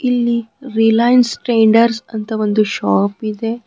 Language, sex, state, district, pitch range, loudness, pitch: Kannada, female, Karnataka, Bidar, 215-235 Hz, -15 LUFS, 225 Hz